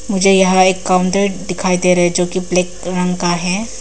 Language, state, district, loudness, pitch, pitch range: Hindi, Arunachal Pradesh, Papum Pare, -14 LUFS, 185 Hz, 180-190 Hz